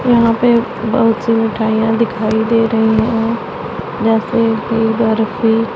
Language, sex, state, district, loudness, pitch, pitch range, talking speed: Hindi, female, Punjab, Pathankot, -14 LUFS, 225 Hz, 225-230 Hz, 125 wpm